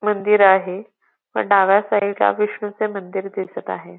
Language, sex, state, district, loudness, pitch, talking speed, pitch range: Marathi, female, Maharashtra, Pune, -18 LUFS, 200 Hz, 150 wpm, 190-210 Hz